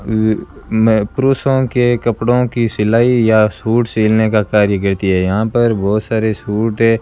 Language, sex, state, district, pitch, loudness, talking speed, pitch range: Hindi, male, Rajasthan, Bikaner, 110 Hz, -14 LUFS, 170 wpm, 105-120 Hz